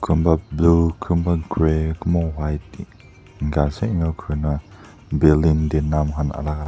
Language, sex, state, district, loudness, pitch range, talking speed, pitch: Nagamese, male, Nagaland, Dimapur, -20 LUFS, 75-85 Hz, 135 wpm, 80 Hz